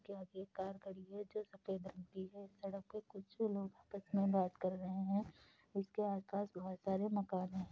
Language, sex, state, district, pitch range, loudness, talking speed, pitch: Hindi, female, Uttar Pradesh, Hamirpur, 190-200 Hz, -43 LUFS, 225 wpm, 195 Hz